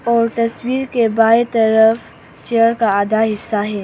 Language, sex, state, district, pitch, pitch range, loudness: Hindi, female, Arunachal Pradesh, Papum Pare, 230 Hz, 220-235 Hz, -15 LUFS